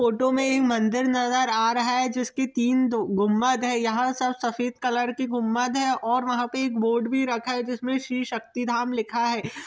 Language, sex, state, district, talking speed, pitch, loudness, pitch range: Hindi, male, Chhattisgarh, Bilaspur, 210 wpm, 245 Hz, -24 LUFS, 235-255 Hz